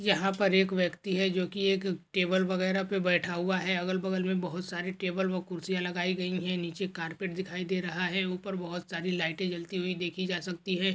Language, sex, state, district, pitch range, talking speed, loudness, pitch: Hindi, male, Maharashtra, Dhule, 180-190 Hz, 225 wpm, -31 LUFS, 185 Hz